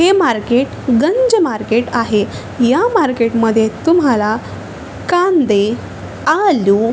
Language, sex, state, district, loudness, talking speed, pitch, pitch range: Marathi, female, Maharashtra, Chandrapur, -14 LUFS, 95 wpm, 240 Hz, 225-345 Hz